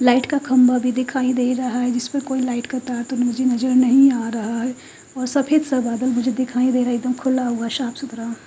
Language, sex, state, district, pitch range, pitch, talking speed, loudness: Hindi, female, Bihar, Katihar, 245-260 Hz, 255 Hz, 250 wpm, -20 LUFS